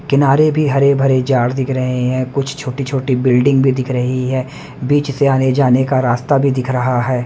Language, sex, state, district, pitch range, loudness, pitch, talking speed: Hindi, male, Haryana, Rohtak, 130-140 Hz, -15 LUFS, 130 Hz, 190 wpm